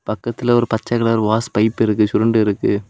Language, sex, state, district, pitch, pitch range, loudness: Tamil, male, Tamil Nadu, Kanyakumari, 110 Hz, 110-115 Hz, -17 LUFS